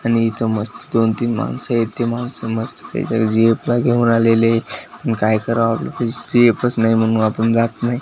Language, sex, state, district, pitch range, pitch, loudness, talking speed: Marathi, male, Maharashtra, Washim, 115-120 Hz, 115 Hz, -17 LUFS, 140 wpm